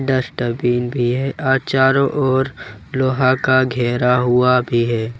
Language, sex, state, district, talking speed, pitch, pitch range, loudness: Hindi, male, Jharkhand, Ranchi, 140 wpm, 125 Hz, 120-130 Hz, -17 LUFS